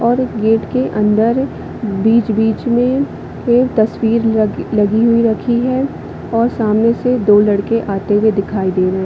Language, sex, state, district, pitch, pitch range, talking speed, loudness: Hindi, female, Chhattisgarh, Bilaspur, 225 Hz, 210-240 Hz, 150 wpm, -15 LUFS